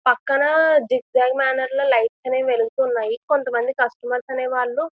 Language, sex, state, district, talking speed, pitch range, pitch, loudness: Telugu, female, Andhra Pradesh, Visakhapatnam, 170 wpm, 245-275 Hz, 255 Hz, -20 LUFS